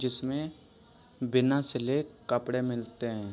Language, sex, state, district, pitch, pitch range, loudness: Hindi, male, Jharkhand, Jamtara, 125 Hz, 120-140 Hz, -31 LUFS